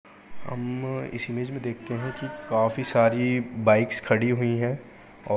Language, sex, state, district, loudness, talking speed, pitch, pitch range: Hindi, male, Uttar Pradesh, Gorakhpur, -26 LUFS, 155 wpm, 120 Hz, 115-125 Hz